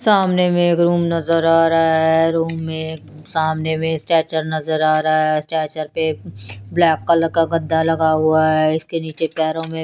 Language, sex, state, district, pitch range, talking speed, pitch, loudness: Hindi, female, Haryana, Charkhi Dadri, 155-165 Hz, 175 wpm, 160 Hz, -17 LUFS